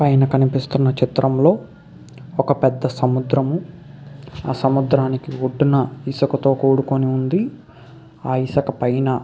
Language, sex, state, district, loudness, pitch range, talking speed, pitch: Telugu, male, Andhra Pradesh, Krishna, -19 LUFS, 130-140 Hz, 95 wpm, 135 Hz